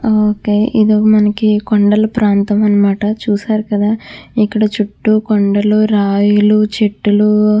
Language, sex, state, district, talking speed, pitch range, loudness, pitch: Telugu, female, Andhra Pradesh, Krishna, 110 wpm, 205-215 Hz, -13 LUFS, 210 Hz